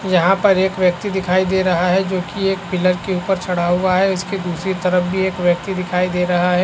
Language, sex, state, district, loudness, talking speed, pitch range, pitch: Hindi, female, Chhattisgarh, Korba, -17 LUFS, 245 wpm, 180-190 Hz, 185 Hz